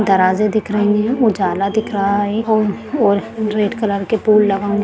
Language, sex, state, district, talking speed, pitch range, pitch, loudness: Hindi, female, Bihar, Lakhisarai, 160 wpm, 200-220 Hz, 210 Hz, -16 LUFS